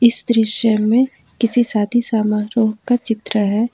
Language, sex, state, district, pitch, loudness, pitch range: Hindi, female, Jharkhand, Ranchi, 225 Hz, -17 LUFS, 215-240 Hz